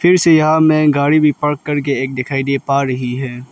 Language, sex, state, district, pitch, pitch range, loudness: Hindi, male, Arunachal Pradesh, Lower Dibang Valley, 140 Hz, 135-155 Hz, -14 LUFS